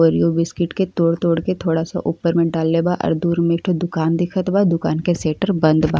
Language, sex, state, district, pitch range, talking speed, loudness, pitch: Bhojpuri, female, Uttar Pradesh, Ghazipur, 165-180 Hz, 250 wpm, -19 LUFS, 170 Hz